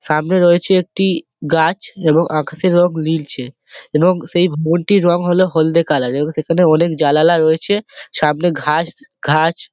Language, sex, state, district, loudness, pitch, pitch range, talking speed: Bengali, male, West Bengal, Dakshin Dinajpur, -15 LUFS, 165 Hz, 155-175 Hz, 155 wpm